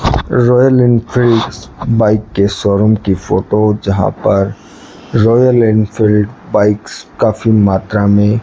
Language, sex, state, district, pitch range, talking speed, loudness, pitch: Hindi, male, Rajasthan, Bikaner, 100-115 Hz, 115 wpm, -12 LUFS, 105 Hz